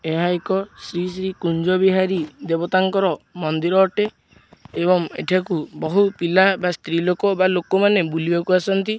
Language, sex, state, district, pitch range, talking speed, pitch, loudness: Odia, male, Odisha, Khordha, 170-190 Hz, 125 wpm, 185 Hz, -20 LUFS